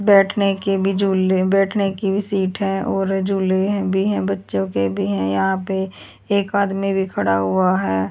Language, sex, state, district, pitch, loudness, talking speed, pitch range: Hindi, female, Haryana, Charkhi Dadri, 195 Hz, -19 LUFS, 190 wpm, 185-195 Hz